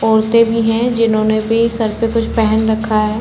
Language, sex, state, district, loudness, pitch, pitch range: Hindi, female, Chhattisgarh, Balrampur, -14 LUFS, 225 Hz, 220-230 Hz